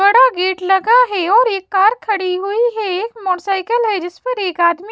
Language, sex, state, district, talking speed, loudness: Hindi, female, Chhattisgarh, Raipur, 205 wpm, -15 LUFS